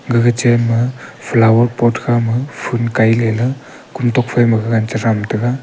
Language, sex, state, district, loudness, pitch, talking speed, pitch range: Wancho, male, Arunachal Pradesh, Longding, -15 LUFS, 120 Hz, 150 wpm, 115-120 Hz